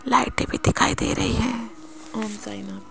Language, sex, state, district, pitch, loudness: Hindi, female, Rajasthan, Jaipur, 110 Hz, -24 LUFS